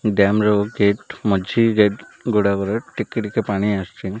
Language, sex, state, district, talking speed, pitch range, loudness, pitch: Odia, male, Odisha, Malkangiri, 140 wpm, 100-110 Hz, -19 LUFS, 105 Hz